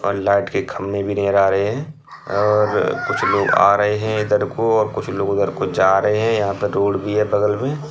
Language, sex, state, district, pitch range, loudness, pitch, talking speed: Hindi, male, Bihar, Bhagalpur, 100-105 Hz, -18 LUFS, 105 Hz, 235 wpm